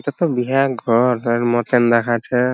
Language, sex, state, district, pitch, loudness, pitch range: Bengali, male, West Bengal, Purulia, 125 Hz, -17 LUFS, 120-130 Hz